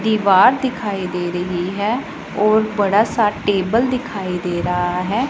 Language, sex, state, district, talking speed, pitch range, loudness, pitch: Hindi, female, Punjab, Pathankot, 145 wpm, 180-220 Hz, -18 LUFS, 205 Hz